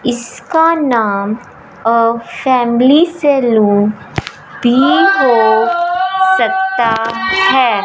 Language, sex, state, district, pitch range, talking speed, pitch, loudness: Hindi, female, Punjab, Fazilka, 230-335 Hz, 70 wpm, 245 Hz, -12 LUFS